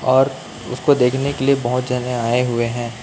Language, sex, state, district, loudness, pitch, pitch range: Hindi, male, Chhattisgarh, Raipur, -18 LUFS, 125 Hz, 120-135 Hz